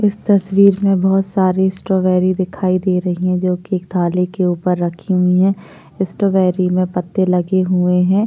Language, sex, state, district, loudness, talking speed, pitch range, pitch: Hindi, female, Maharashtra, Chandrapur, -16 LUFS, 180 wpm, 180-190 Hz, 185 Hz